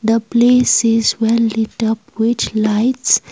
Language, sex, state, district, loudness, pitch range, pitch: English, female, Assam, Kamrup Metropolitan, -15 LUFS, 220-235 Hz, 225 Hz